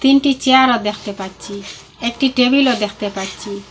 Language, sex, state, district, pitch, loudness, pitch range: Bengali, female, Assam, Hailakandi, 215 Hz, -16 LUFS, 200-260 Hz